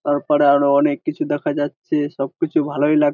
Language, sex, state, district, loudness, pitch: Bengali, male, West Bengal, Jhargram, -19 LUFS, 145 Hz